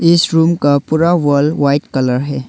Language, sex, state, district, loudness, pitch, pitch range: Hindi, male, Arunachal Pradesh, Longding, -13 LUFS, 145 Hz, 140-165 Hz